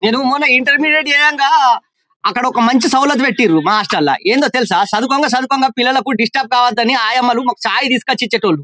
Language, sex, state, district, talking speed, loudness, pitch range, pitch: Telugu, male, Telangana, Karimnagar, 190 wpm, -13 LUFS, 235-275 Hz, 255 Hz